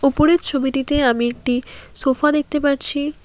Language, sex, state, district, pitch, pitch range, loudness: Bengali, female, West Bengal, Alipurduar, 275 Hz, 265-295 Hz, -17 LUFS